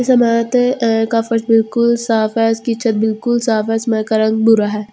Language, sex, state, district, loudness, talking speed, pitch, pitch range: Hindi, female, Delhi, New Delhi, -15 LUFS, 220 wpm, 225 Hz, 220-235 Hz